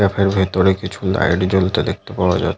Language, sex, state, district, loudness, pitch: Bengali, male, West Bengal, Paschim Medinipur, -17 LUFS, 95 Hz